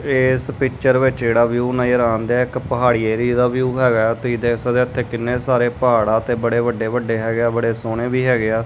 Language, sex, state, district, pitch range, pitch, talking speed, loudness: Punjabi, male, Punjab, Kapurthala, 115-125 Hz, 120 Hz, 235 wpm, -18 LUFS